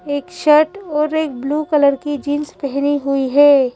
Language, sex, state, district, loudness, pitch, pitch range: Hindi, female, Madhya Pradesh, Bhopal, -16 LUFS, 290 Hz, 280-300 Hz